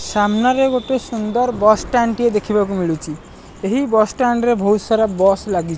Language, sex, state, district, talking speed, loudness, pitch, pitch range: Odia, male, Odisha, Malkangiri, 155 wpm, -17 LUFS, 215 Hz, 200-240 Hz